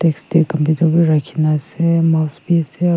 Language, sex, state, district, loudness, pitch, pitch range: Nagamese, female, Nagaland, Kohima, -16 LUFS, 160 Hz, 155-165 Hz